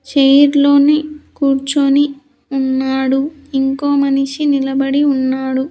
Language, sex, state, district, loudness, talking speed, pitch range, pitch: Telugu, female, Andhra Pradesh, Sri Satya Sai, -14 LUFS, 85 wpm, 270-285 Hz, 275 Hz